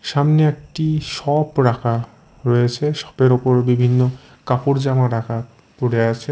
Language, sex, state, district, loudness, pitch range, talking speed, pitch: Bengali, male, Odisha, Khordha, -18 LUFS, 120-145 Hz, 125 wpm, 130 Hz